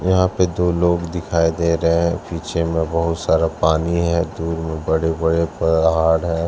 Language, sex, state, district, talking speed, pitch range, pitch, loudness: Hindi, male, Punjab, Kapurthala, 185 wpm, 80-85 Hz, 85 Hz, -19 LUFS